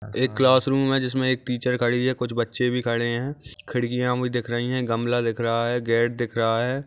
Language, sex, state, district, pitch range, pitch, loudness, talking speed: Hindi, male, Maharashtra, Aurangabad, 120-130 Hz, 125 Hz, -23 LUFS, 225 wpm